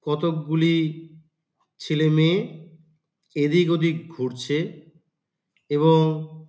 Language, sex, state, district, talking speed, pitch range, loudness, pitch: Bengali, male, West Bengal, Paschim Medinipur, 75 wpm, 155-165 Hz, -22 LUFS, 160 Hz